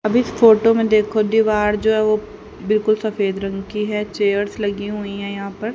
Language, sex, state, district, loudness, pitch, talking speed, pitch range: Hindi, female, Haryana, Jhajjar, -18 LUFS, 210 Hz, 210 wpm, 205-220 Hz